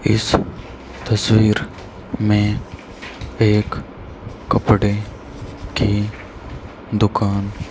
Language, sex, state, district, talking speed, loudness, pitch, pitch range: Hindi, male, Haryana, Rohtak, 55 wpm, -19 LUFS, 105 Hz, 95-110 Hz